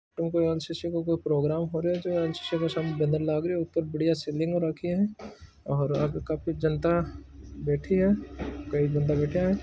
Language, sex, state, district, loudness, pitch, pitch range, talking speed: Marwari, male, Rajasthan, Churu, -28 LUFS, 165 Hz, 150-170 Hz, 180 wpm